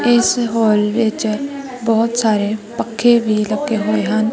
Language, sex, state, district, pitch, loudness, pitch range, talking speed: Punjabi, female, Punjab, Kapurthala, 225 Hz, -16 LUFS, 215-240 Hz, 140 wpm